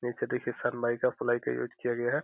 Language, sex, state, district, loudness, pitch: Hindi, male, Bihar, Gopalganj, -31 LUFS, 120 Hz